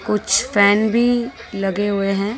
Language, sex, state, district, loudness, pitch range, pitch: Hindi, female, Delhi, New Delhi, -17 LUFS, 200-235 Hz, 205 Hz